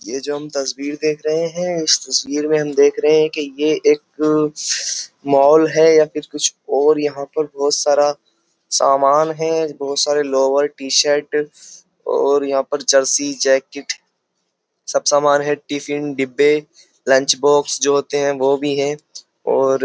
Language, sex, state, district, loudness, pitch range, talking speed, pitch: Hindi, male, Uttar Pradesh, Jyotiba Phule Nagar, -17 LUFS, 140-150 Hz, 155 wpm, 145 Hz